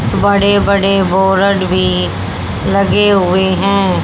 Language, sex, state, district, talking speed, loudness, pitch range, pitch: Hindi, male, Haryana, Jhajjar, 105 wpm, -12 LUFS, 180-200 Hz, 190 Hz